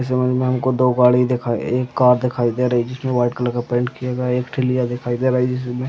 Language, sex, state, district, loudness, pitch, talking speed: Hindi, male, Chhattisgarh, Raigarh, -19 LUFS, 125 Hz, 295 wpm